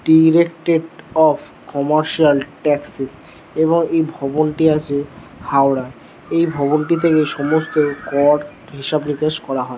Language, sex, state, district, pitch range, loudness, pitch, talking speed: Bengali, male, West Bengal, North 24 Parganas, 140-160 Hz, -17 LUFS, 150 Hz, 110 wpm